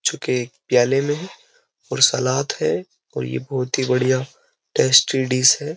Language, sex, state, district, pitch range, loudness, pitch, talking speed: Hindi, male, Uttar Pradesh, Jyotiba Phule Nagar, 125-145 Hz, -19 LUFS, 130 Hz, 165 wpm